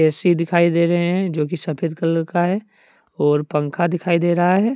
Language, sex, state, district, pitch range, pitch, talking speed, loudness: Hindi, male, Jharkhand, Deoghar, 165-175 Hz, 170 Hz, 215 wpm, -19 LUFS